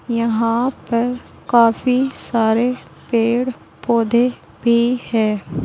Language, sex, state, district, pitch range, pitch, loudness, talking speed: Hindi, female, Uttar Pradesh, Saharanpur, 230-245 Hz, 235 Hz, -18 LUFS, 85 wpm